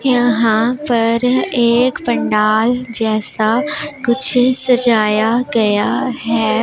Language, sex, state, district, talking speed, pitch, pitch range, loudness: Hindi, female, Punjab, Pathankot, 80 wpm, 235 Hz, 220-250 Hz, -14 LUFS